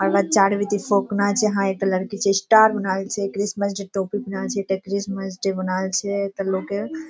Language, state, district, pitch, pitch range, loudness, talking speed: Surjapuri, Bihar, Kishanganj, 200 Hz, 195-205 Hz, -22 LUFS, 220 wpm